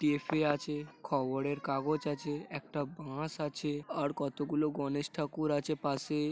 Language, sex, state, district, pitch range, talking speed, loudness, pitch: Bengali, male, West Bengal, North 24 Parganas, 145-150 Hz, 170 wpm, -35 LUFS, 145 Hz